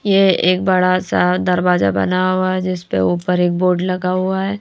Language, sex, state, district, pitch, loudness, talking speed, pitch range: Hindi, female, Haryana, Rohtak, 185 Hz, -16 LUFS, 210 wpm, 180-185 Hz